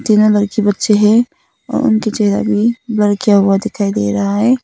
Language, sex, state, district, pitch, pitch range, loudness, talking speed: Hindi, female, Nagaland, Kohima, 210 Hz, 205-225 Hz, -14 LUFS, 195 wpm